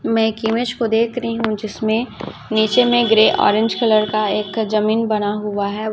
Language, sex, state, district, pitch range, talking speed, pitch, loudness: Hindi, female, Chhattisgarh, Raipur, 215-230 Hz, 190 wpm, 220 Hz, -17 LUFS